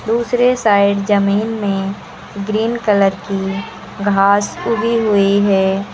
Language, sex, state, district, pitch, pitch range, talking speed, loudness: Hindi, female, Uttar Pradesh, Lucknow, 200 Hz, 195-220 Hz, 110 wpm, -15 LUFS